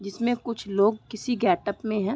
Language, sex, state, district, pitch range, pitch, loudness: Hindi, female, Uttar Pradesh, Deoria, 200-235 Hz, 220 Hz, -26 LUFS